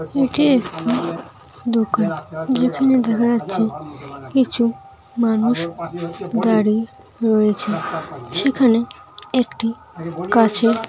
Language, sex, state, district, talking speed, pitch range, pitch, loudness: Bengali, female, West Bengal, North 24 Parganas, 70 wpm, 180-240 Hz, 225 Hz, -19 LUFS